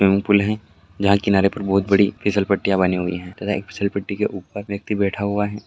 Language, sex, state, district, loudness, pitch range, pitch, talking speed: Maithili, male, Bihar, Purnia, -20 LUFS, 95-100 Hz, 100 Hz, 210 wpm